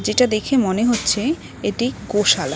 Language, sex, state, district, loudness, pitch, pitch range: Bengali, female, West Bengal, Cooch Behar, -19 LUFS, 225 Hz, 205-245 Hz